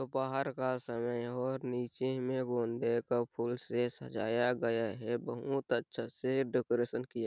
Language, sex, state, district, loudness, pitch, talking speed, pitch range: Hindi, male, Chhattisgarh, Sarguja, -35 LUFS, 120 Hz, 165 wpm, 120-130 Hz